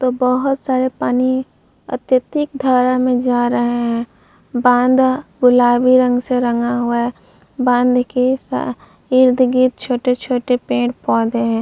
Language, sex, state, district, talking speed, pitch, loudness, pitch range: Hindi, female, Uttar Pradesh, Muzaffarnagar, 130 wpm, 250 Hz, -16 LUFS, 240-255 Hz